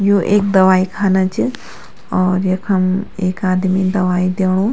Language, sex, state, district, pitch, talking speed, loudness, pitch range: Garhwali, female, Uttarakhand, Tehri Garhwal, 185 Hz, 140 wpm, -16 LUFS, 185-195 Hz